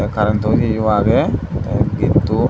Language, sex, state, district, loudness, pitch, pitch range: Chakma, male, Tripura, Dhalai, -16 LUFS, 110 Hz, 105-110 Hz